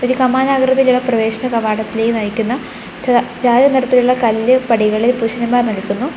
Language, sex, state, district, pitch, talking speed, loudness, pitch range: Malayalam, female, Kerala, Kollam, 245 Hz, 135 wpm, -14 LUFS, 225-255 Hz